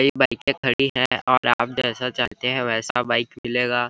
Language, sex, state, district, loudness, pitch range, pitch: Hindi, male, Chhattisgarh, Bilaspur, -21 LUFS, 120-130 Hz, 125 Hz